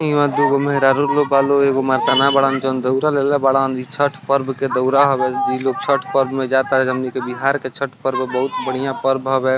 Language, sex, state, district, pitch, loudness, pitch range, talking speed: Bhojpuri, male, Bihar, East Champaran, 135 Hz, -17 LUFS, 130-140 Hz, 245 wpm